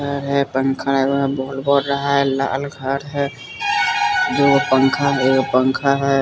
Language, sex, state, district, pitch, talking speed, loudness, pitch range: Hindi, male, Bihar, West Champaran, 135 Hz, 185 wpm, -18 LUFS, 135-140 Hz